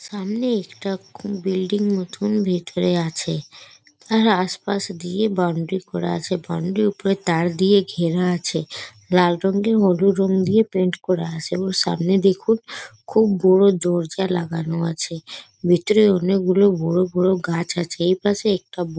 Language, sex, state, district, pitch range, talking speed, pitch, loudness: Bengali, female, West Bengal, North 24 Parganas, 175-200 Hz, 140 wpm, 185 Hz, -20 LUFS